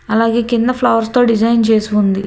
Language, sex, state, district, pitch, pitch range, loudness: Telugu, female, Telangana, Hyderabad, 230 Hz, 220-235 Hz, -13 LUFS